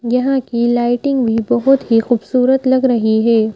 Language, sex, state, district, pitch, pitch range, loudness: Hindi, female, Madhya Pradesh, Bhopal, 240 Hz, 230-260 Hz, -14 LUFS